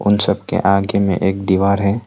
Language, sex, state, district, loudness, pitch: Hindi, male, Arunachal Pradesh, Longding, -16 LUFS, 100 Hz